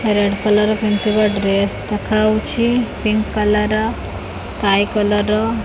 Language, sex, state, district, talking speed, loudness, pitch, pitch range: Odia, female, Odisha, Khordha, 140 wpm, -17 LUFS, 210 Hz, 205-215 Hz